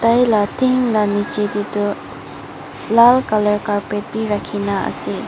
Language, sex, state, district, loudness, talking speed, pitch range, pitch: Nagamese, female, Mizoram, Aizawl, -17 LUFS, 150 wpm, 205-230 Hz, 210 Hz